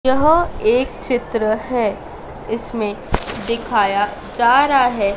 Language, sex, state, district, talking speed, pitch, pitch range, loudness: Hindi, female, Madhya Pradesh, Dhar, 105 wpm, 235 Hz, 215-260 Hz, -18 LUFS